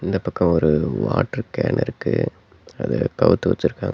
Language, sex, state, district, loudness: Tamil, male, Tamil Nadu, Namakkal, -21 LUFS